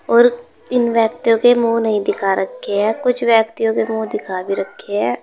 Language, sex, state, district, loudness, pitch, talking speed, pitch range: Hindi, female, Uttar Pradesh, Saharanpur, -17 LUFS, 225 Hz, 195 wpm, 205-235 Hz